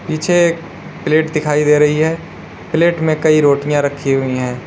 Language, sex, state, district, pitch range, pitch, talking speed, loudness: Hindi, male, Uttar Pradesh, Lalitpur, 145-165 Hz, 155 Hz, 180 wpm, -15 LUFS